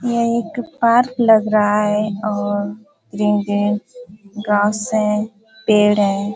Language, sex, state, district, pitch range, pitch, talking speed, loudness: Hindi, female, Uttar Pradesh, Ghazipur, 205-225 Hz, 210 Hz, 95 wpm, -17 LUFS